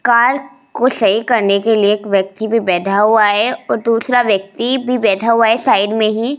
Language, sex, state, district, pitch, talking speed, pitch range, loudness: Hindi, female, Rajasthan, Jaipur, 225 Hz, 215 wpm, 205-240 Hz, -14 LUFS